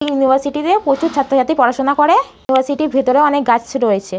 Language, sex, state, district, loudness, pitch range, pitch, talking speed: Bengali, female, West Bengal, North 24 Parganas, -14 LUFS, 260-295 Hz, 275 Hz, 185 wpm